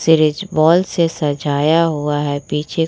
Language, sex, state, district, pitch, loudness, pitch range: Hindi, female, Bihar, Vaishali, 155 Hz, -16 LUFS, 150-165 Hz